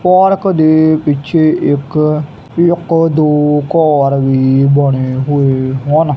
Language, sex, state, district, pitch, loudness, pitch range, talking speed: Punjabi, male, Punjab, Kapurthala, 150 Hz, -11 LUFS, 140-160 Hz, 105 wpm